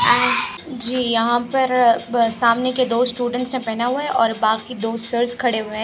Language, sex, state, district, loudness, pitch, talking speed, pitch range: Hindi, female, Haryana, Charkhi Dadri, -19 LUFS, 240 Hz, 185 wpm, 230-250 Hz